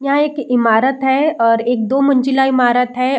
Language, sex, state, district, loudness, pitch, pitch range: Hindi, female, Bihar, Saran, -14 LUFS, 265 Hz, 245-275 Hz